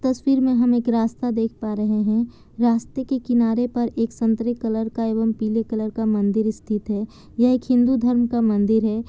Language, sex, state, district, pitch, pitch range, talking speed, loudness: Hindi, female, Bihar, Kishanganj, 230 Hz, 220-240 Hz, 205 wpm, -21 LUFS